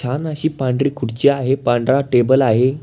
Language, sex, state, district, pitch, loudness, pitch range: Marathi, male, Maharashtra, Pune, 135 Hz, -17 LUFS, 125-140 Hz